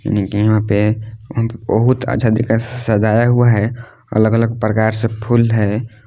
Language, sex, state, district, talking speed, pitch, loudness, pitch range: Hindi, male, Jharkhand, Palamu, 120 wpm, 110 Hz, -16 LUFS, 110-115 Hz